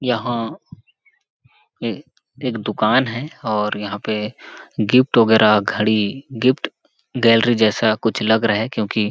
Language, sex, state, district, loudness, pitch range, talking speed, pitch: Hindi, male, Chhattisgarh, Sarguja, -18 LUFS, 110-125 Hz, 130 wpm, 115 Hz